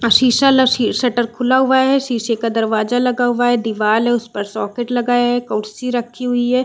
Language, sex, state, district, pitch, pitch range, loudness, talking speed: Hindi, female, Chhattisgarh, Balrampur, 245 Hz, 230-250 Hz, -16 LUFS, 215 wpm